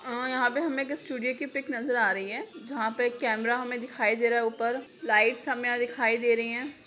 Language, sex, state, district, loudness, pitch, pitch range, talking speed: Hindi, female, Bihar, Jahanabad, -28 LUFS, 245 Hz, 235-270 Hz, 255 wpm